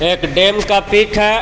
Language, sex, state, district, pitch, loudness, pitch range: Hindi, male, Jharkhand, Palamu, 200 Hz, -13 LUFS, 180-210 Hz